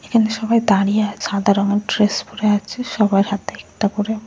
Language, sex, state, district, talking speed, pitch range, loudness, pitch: Bengali, female, West Bengal, Kolkata, 195 wpm, 200-220 Hz, -18 LUFS, 210 Hz